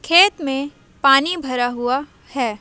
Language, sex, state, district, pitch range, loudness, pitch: Hindi, female, Madhya Pradesh, Umaria, 250-295 Hz, -18 LUFS, 275 Hz